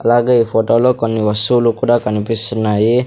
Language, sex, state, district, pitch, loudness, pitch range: Telugu, male, Andhra Pradesh, Sri Satya Sai, 115 Hz, -14 LUFS, 110-120 Hz